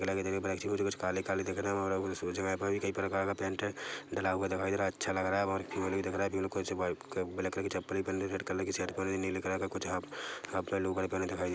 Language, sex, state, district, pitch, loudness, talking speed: Hindi, male, Chhattisgarh, Rajnandgaon, 95 Hz, -35 LUFS, 315 wpm